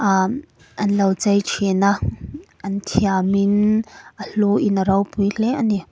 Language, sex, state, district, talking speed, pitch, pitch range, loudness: Mizo, female, Mizoram, Aizawl, 140 wpm, 200 Hz, 195-210 Hz, -19 LUFS